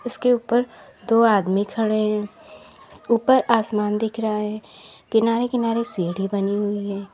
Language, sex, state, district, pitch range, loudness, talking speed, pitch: Hindi, female, Uttar Pradesh, Lalitpur, 205-235 Hz, -21 LUFS, 145 wpm, 220 Hz